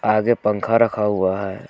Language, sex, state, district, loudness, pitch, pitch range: Hindi, male, Jharkhand, Garhwa, -19 LUFS, 105 Hz, 100-115 Hz